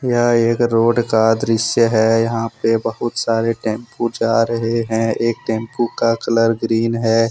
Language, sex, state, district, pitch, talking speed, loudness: Hindi, male, Jharkhand, Deoghar, 115 Hz, 165 wpm, -17 LUFS